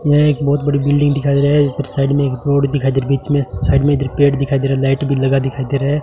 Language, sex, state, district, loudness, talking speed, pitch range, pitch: Hindi, male, Rajasthan, Bikaner, -15 LUFS, 345 wpm, 135-145 Hz, 140 Hz